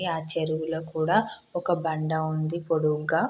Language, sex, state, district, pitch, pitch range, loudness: Telugu, female, Andhra Pradesh, Srikakulam, 160 Hz, 155-170 Hz, -27 LUFS